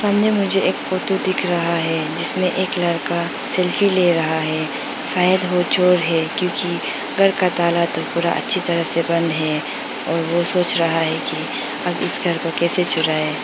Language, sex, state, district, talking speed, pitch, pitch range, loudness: Hindi, female, Arunachal Pradesh, Lower Dibang Valley, 185 wpm, 170 Hz, 165-185 Hz, -18 LUFS